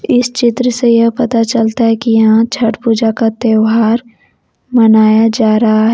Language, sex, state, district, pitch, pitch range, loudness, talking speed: Hindi, female, Jharkhand, Deoghar, 230 Hz, 220-235 Hz, -11 LUFS, 170 wpm